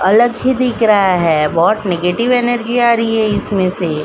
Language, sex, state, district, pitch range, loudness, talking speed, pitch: Hindi, female, Uttar Pradesh, Jalaun, 180-240 Hz, -13 LUFS, 190 wpm, 210 Hz